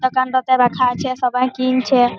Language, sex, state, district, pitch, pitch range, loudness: Bengali, female, West Bengal, Malda, 255 Hz, 250-255 Hz, -17 LUFS